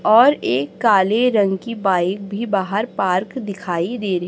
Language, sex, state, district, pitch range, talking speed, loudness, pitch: Hindi, female, Chhattisgarh, Raipur, 185-220 Hz, 170 wpm, -18 LUFS, 200 Hz